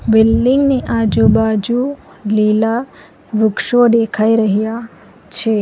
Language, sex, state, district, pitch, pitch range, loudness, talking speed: Gujarati, female, Gujarat, Valsad, 225 Hz, 215-240 Hz, -14 LUFS, 85 wpm